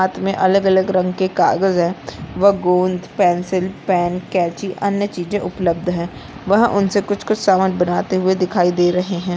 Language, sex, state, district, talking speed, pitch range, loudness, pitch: Hindi, female, Bihar, Bhagalpur, 175 wpm, 180-195 Hz, -17 LUFS, 185 Hz